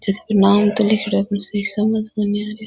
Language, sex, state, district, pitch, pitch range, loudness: Rajasthani, female, Rajasthan, Nagaur, 210 Hz, 200-215 Hz, -18 LUFS